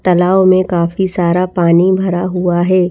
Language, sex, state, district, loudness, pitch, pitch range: Hindi, female, Madhya Pradesh, Bhopal, -12 LUFS, 180 Hz, 175-185 Hz